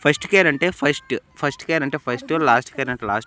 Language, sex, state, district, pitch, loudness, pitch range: Telugu, male, Andhra Pradesh, Annamaya, 145 Hz, -20 LUFS, 125-175 Hz